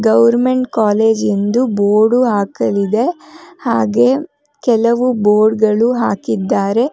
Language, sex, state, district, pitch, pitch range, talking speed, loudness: Kannada, female, Karnataka, Bangalore, 225 Hz, 210-250 Hz, 85 wpm, -14 LUFS